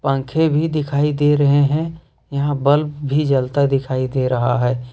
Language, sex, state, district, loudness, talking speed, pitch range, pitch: Hindi, male, Jharkhand, Ranchi, -18 LUFS, 170 wpm, 130-150 Hz, 140 Hz